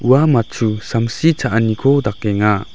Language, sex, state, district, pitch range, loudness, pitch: Garo, male, Meghalaya, West Garo Hills, 105-135 Hz, -16 LUFS, 115 Hz